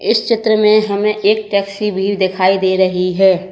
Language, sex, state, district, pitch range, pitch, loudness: Hindi, female, Uttar Pradesh, Lalitpur, 190-210 Hz, 200 Hz, -14 LUFS